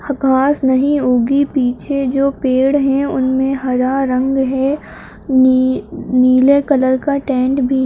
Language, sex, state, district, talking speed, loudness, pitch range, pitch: Kumaoni, female, Uttarakhand, Uttarkashi, 135 wpm, -14 LUFS, 260-275 Hz, 265 Hz